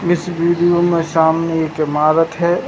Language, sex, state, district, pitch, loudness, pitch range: Hindi, male, Uttar Pradesh, Muzaffarnagar, 165 Hz, -15 LUFS, 160-175 Hz